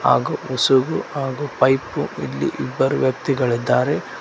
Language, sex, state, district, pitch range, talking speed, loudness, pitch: Kannada, male, Karnataka, Koppal, 130-135 Hz, 100 wpm, -20 LUFS, 130 Hz